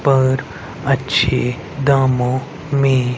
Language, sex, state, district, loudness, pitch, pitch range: Hindi, male, Haryana, Rohtak, -17 LUFS, 130 Hz, 125-140 Hz